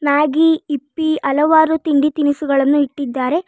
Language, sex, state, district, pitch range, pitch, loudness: Kannada, female, Karnataka, Bangalore, 285-315 Hz, 295 Hz, -16 LUFS